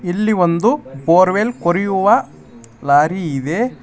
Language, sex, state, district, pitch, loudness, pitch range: Kannada, male, Karnataka, Koppal, 175 Hz, -16 LUFS, 145-205 Hz